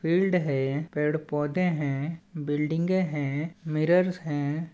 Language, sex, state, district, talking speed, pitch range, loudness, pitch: Chhattisgarhi, male, Chhattisgarh, Balrampur, 115 wpm, 145-175 Hz, -27 LUFS, 155 Hz